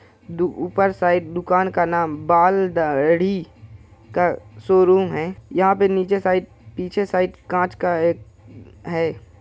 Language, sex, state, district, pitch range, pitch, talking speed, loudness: Hindi, male, Bihar, Purnia, 115-185 Hz, 175 Hz, 140 wpm, -20 LUFS